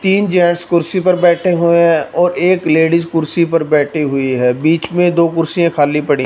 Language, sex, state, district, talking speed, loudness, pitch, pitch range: Hindi, male, Punjab, Fazilka, 200 wpm, -13 LUFS, 170 Hz, 155-175 Hz